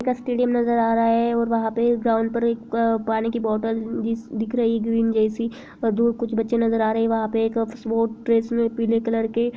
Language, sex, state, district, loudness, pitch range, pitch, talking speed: Hindi, female, Bihar, Sitamarhi, -22 LUFS, 225-235 Hz, 230 Hz, 240 wpm